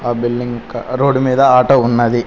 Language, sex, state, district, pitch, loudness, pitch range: Telugu, male, Telangana, Mahabubabad, 120 Hz, -13 LUFS, 120-130 Hz